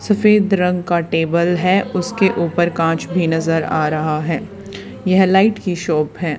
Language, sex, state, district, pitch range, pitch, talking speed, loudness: Hindi, female, Haryana, Charkhi Dadri, 165-190 Hz, 175 Hz, 170 wpm, -17 LUFS